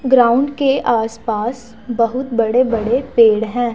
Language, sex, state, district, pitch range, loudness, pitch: Hindi, female, Punjab, Pathankot, 230-255 Hz, -16 LUFS, 240 Hz